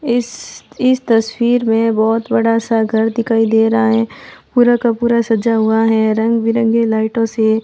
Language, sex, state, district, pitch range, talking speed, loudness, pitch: Hindi, female, Rajasthan, Barmer, 225-235 Hz, 165 wpm, -14 LUFS, 225 Hz